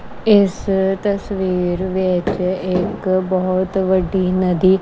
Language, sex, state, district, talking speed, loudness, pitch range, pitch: Punjabi, female, Punjab, Kapurthala, 85 wpm, -18 LUFS, 185-195 Hz, 185 Hz